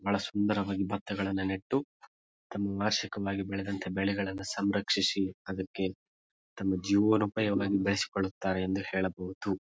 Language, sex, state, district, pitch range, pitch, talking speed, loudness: Kannada, male, Karnataka, Bijapur, 95-100 Hz, 100 Hz, 95 wpm, -31 LUFS